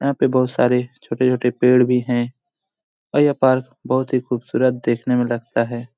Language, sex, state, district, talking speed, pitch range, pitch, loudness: Hindi, male, Bihar, Jamui, 180 wpm, 120-130 Hz, 125 Hz, -19 LUFS